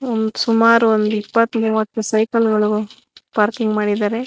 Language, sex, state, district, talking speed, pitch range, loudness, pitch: Kannada, female, Karnataka, Bangalore, 110 wpm, 215-230 Hz, -17 LUFS, 220 Hz